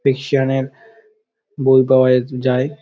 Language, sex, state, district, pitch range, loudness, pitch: Bengali, male, West Bengal, Dakshin Dinajpur, 130-155 Hz, -16 LUFS, 135 Hz